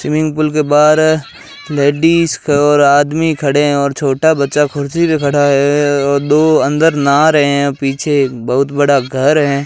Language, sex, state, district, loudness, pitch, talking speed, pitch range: Hindi, male, Rajasthan, Jaisalmer, -12 LUFS, 145 Hz, 175 wpm, 140-155 Hz